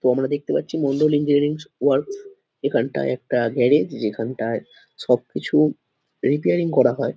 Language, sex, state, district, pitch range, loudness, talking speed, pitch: Bengali, male, West Bengal, Dakshin Dinajpur, 115-150 Hz, -21 LUFS, 140 wpm, 140 Hz